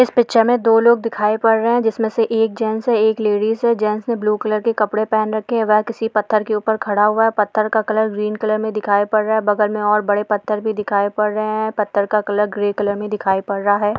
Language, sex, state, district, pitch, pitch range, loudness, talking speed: Hindi, female, Bihar, Saharsa, 215 Hz, 210-225 Hz, -17 LUFS, 280 wpm